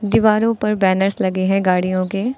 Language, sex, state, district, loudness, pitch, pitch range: Hindi, female, Uttar Pradesh, Lucknow, -17 LUFS, 195 Hz, 185-215 Hz